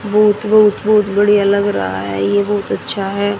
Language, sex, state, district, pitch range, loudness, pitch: Hindi, female, Haryana, Rohtak, 195-210 Hz, -14 LUFS, 205 Hz